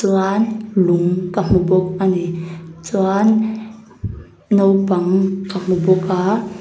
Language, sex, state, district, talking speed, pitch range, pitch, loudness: Mizo, female, Mizoram, Aizawl, 110 wpm, 180-200 Hz, 190 Hz, -17 LUFS